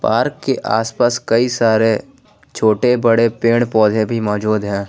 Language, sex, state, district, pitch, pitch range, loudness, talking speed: Hindi, male, Jharkhand, Ranchi, 115 Hz, 110-115 Hz, -16 LUFS, 145 wpm